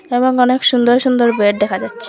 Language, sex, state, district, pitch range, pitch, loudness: Bengali, female, Assam, Hailakandi, 235-255 Hz, 245 Hz, -13 LUFS